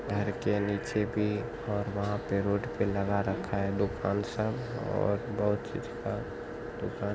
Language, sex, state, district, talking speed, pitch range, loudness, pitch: Hindi, male, Bihar, Begusarai, 170 wpm, 100-105 Hz, -32 LUFS, 100 Hz